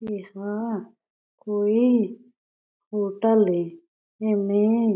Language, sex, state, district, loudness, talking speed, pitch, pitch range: Chhattisgarhi, female, Chhattisgarh, Jashpur, -24 LUFS, 70 wpm, 210 Hz, 200-225 Hz